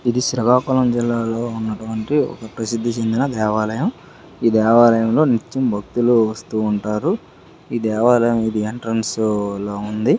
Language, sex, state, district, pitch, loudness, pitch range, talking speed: Telugu, male, Andhra Pradesh, Srikakulam, 115 Hz, -19 LUFS, 110-120 Hz, 120 wpm